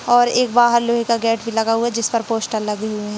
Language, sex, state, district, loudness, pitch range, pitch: Hindi, female, Uttarakhand, Tehri Garhwal, -18 LUFS, 225-235 Hz, 230 Hz